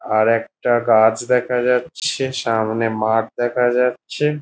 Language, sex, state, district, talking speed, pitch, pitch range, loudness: Bengali, male, West Bengal, Dakshin Dinajpur, 135 wpm, 120 Hz, 115-125 Hz, -18 LUFS